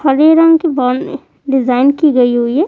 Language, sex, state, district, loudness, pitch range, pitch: Hindi, female, Bihar, Kaimur, -11 LUFS, 255-315 Hz, 280 Hz